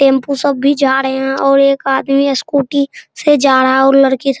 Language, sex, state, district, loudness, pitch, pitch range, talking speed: Hindi, male, Bihar, Araria, -12 LUFS, 275 Hz, 265-280 Hz, 230 wpm